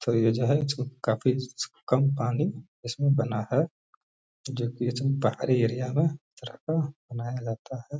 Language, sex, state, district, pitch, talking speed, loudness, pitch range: Hindi, male, Bihar, Gaya, 130 Hz, 155 wpm, -28 LUFS, 120-140 Hz